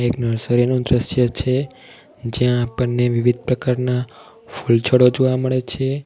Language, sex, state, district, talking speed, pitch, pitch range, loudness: Gujarati, male, Gujarat, Valsad, 130 wpm, 125 Hz, 120-130 Hz, -18 LUFS